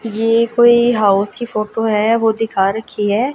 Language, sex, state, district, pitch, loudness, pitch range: Hindi, female, Haryana, Jhajjar, 225 Hz, -15 LUFS, 210-230 Hz